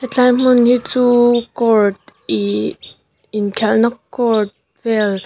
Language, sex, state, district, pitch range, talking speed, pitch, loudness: Mizo, female, Mizoram, Aizawl, 205-245 Hz, 100 wpm, 230 Hz, -15 LUFS